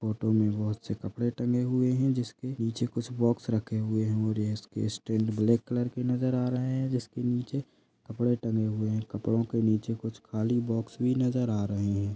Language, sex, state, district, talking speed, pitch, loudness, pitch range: Hindi, male, Chhattisgarh, Kabirdham, 205 wpm, 115 Hz, -29 LUFS, 110-125 Hz